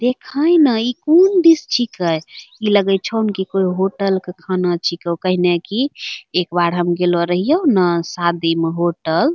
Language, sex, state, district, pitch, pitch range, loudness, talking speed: Angika, female, Bihar, Bhagalpur, 185 Hz, 175-240 Hz, -17 LUFS, 185 wpm